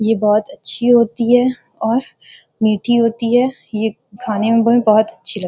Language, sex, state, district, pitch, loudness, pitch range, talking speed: Hindi, female, Uttar Pradesh, Gorakhpur, 230 Hz, -15 LUFS, 215-240 Hz, 175 wpm